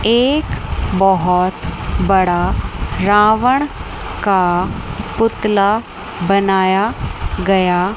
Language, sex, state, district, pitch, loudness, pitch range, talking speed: Hindi, female, Chandigarh, Chandigarh, 195 Hz, -16 LUFS, 185-220 Hz, 70 wpm